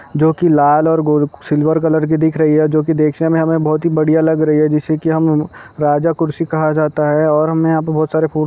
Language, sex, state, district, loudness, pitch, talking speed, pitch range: Hindi, male, Chhattisgarh, Bastar, -14 LUFS, 155 Hz, 255 wpm, 150-160 Hz